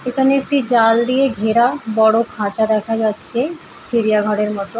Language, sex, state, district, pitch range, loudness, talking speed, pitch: Bengali, female, West Bengal, Paschim Medinipur, 215-255 Hz, -16 LUFS, 150 wpm, 230 Hz